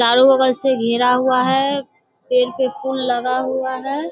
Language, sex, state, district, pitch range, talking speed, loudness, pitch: Hindi, female, Bihar, Sitamarhi, 255-270 Hz, 175 wpm, -17 LUFS, 260 Hz